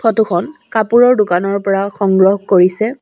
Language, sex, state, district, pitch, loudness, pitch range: Assamese, female, Assam, Sonitpur, 200 Hz, -13 LUFS, 190-225 Hz